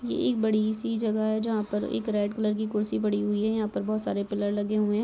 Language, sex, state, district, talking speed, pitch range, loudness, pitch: Hindi, male, Rajasthan, Churu, 285 wpm, 210-220 Hz, -27 LUFS, 215 Hz